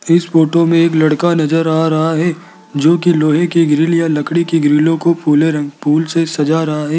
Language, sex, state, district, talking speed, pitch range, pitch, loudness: Hindi, male, Rajasthan, Jaipur, 215 wpm, 155-165 Hz, 160 Hz, -13 LUFS